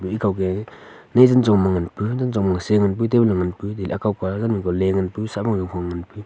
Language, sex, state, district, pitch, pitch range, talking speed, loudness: Wancho, male, Arunachal Pradesh, Longding, 100 Hz, 95-110 Hz, 65 wpm, -20 LUFS